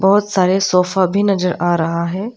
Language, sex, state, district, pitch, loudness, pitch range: Hindi, female, Arunachal Pradesh, Lower Dibang Valley, 185 Hz, -16 LUFS, 175-195 Hz